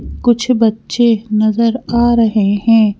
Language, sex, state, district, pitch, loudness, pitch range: Hindi, female, Madhya Pradesh, Bhopal, 225 Hz, -13 LUFS, 215-235 Hz